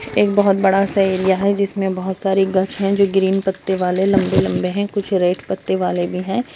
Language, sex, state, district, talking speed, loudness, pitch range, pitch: Hindi, female, Bihar, Kishanganj, 200 wpm, -18 LUFS, 190-195 Hz, 195 Hz